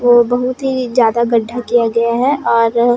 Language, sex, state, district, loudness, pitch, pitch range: Chhattisgarhi, female, Chhattisgarh, Raigarh, -14 LUFS, 240 Hz, 235-250 Hz